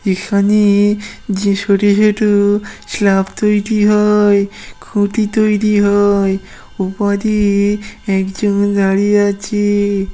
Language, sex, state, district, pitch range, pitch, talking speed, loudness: Bengali, female, West Bengal, Jhargram, 200-210 Hz, 205 Hz, 90 wpm, -14 LUFS